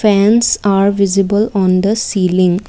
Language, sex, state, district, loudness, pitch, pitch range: English, female, Assam, Kamrup Metropolitan, -13 LUFS, 200 Hz, 190-210 Hz